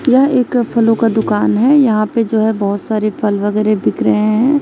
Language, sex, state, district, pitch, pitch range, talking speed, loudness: Hindi, female, Chhattisgarh, Raipur, 220 Hz, 215-245 Hz, 220 wpm, -14 LUFS